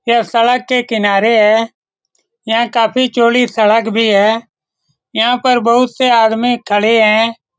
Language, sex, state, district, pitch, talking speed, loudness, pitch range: Hindi, male, Bihar, Saran, 230 Hz, 140 wpm, -12 LUFS, 220-245 Hz